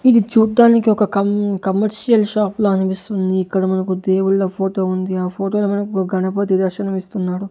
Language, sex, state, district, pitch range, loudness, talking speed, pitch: Telugu, male, Andhra Pradesh, Sri Satya Sai, 190-210 Hz, -17 LUFS, 150 wpm, 195 Hz